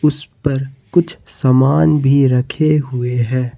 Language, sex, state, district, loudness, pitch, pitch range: Hindi, male, Jharkhand, Ranchi, -15 LUFS, 135 Hz, 125-150 Hz